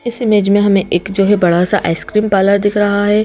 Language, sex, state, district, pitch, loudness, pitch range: Hindi, female, Madhya Pradesh, Bhopal, 205 Hz, -13 LUFS, 195-210 Hz